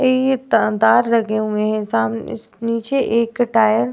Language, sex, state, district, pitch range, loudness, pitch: Hindi, female, Uttar Pradesh, Varanasi, 215-245 Hz, -18 LUFS, 230 Hz